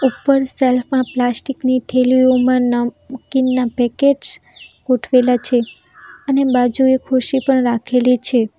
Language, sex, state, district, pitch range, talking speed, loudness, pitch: Gujarati, female, Gujarat, Valsad, 245-265 Hz, 110 wpm, -16 LUFS, 255 Hz